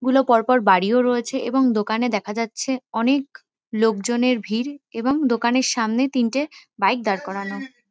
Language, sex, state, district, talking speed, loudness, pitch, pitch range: Bengali, female, West Bengal, Kolkata, 145 wpm, -21 LUFS, 245 Hz, 225-265 Hz